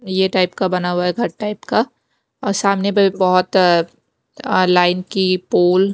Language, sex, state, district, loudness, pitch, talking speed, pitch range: Hindi, female, Bihar, West Champaran, -17 LUFS, 185 Hz, 180 wpm, 180-200 Hz